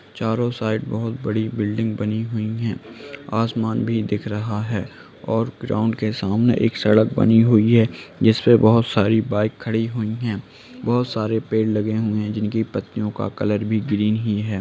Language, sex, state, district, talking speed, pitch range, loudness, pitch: Hindi, male, Bihar, Lakhisarai, 180 wpm, 105-115 Hz, -20 LUFS, 110 Hz